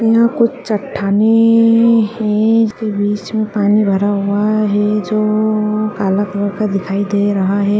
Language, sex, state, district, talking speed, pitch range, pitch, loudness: Hindi, female, Bihar, Bhagalpur, 145 wpm, 205-220 Hz, 210 Hz, -14 LUFS